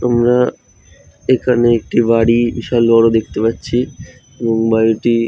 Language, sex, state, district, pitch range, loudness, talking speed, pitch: Bengali, male, West Bengal, Jhargram, 115-120 Hz, -14 LUFS, 125 wpm, 115 Hz